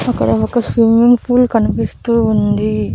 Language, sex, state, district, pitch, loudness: Telugu, female, Andhra Pradesh, Annamaya, 225 Hz, -13 LUFS